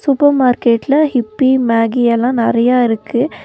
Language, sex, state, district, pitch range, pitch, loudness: Tamil, female, Tamil Nadu, Nilgiris, 235-265 Hz, 245 Hz, -13 LUFS